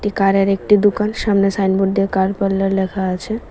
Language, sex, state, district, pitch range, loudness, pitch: Bengali, female, Tripura, West Tripura, 195-205 Hz, -17 LUFS, 195 Hz